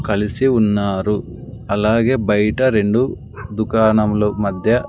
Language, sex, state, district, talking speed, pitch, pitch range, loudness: Telugu, male, Andhra Pradesh, Sri Satya Sai, 100 wpm, 105 Hz, 105-115 Hz, -17 LUFS